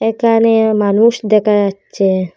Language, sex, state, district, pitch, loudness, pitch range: Bengali, female, Assam, Hailakandi, 215 Hz, -13 LUFS, 200-225 Hz